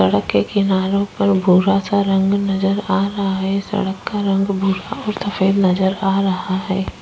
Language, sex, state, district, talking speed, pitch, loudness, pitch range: Hindi, female, Uttar Pradesh, Hamirpur, 180 wpm, 195 Hz, -18 LUFS, 190-200 Hz